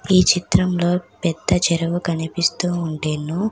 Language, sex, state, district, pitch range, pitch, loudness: Telugu, female, Telangana, Hyderabad, 165-180 Hz, 175 Hz, -20 LUFS